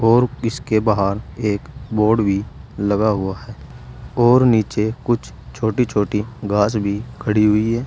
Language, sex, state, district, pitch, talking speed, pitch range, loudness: Hindi, male, Uttar Pradesh, Saharanpur, 110 Hz, 150 wpm, 105-115 Hz, -19 LUFS